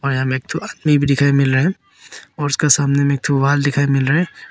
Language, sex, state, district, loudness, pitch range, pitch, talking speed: Hindi, male, Arunachal Pradesh, Papum Pare, -16 LUFS, 140-150 Hz, 140 Hz, 290 wpm